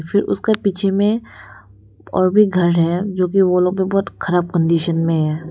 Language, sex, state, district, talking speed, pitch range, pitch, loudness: Hindi, female, Arunachal Pradesh, Lower Dibang Valley, 195 wpm, 165-195 Hz, 175 Hz, -17 LUFS